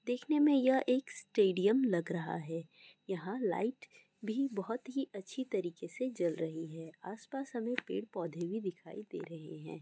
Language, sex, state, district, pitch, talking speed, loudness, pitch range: Hindi, female, West Bengal, Jalpaiguri, 205 Hz, 170 wpm, -36 LUFS, 170-255 Hz